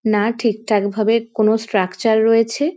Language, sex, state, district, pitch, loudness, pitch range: Bengali, female, West Bengal, North 24 Parganas, 220 Hz, -17 LUFS, 210-225 Hz